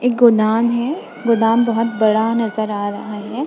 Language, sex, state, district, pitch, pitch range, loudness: Hindi, female, Goa, North and South Goa, 230 Hz, 215-235 Hz, -17 LUFS